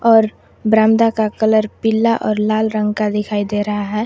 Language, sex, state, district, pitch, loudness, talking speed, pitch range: Hindi, female, Jharkhand, Garhwa, 215 Hz, -16 LUFS, 190 wpm, 210-220 Hz